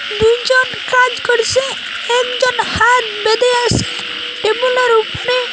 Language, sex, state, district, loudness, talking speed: Bengali, female, Assam, Hailakandi, -14 LUFS, 120 wpm